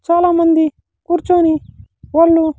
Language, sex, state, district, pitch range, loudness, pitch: Telugu, male, Andhra Pradesh, Sri Satya Sai, 320-345 Hz, -14 LUFS, 335 Hz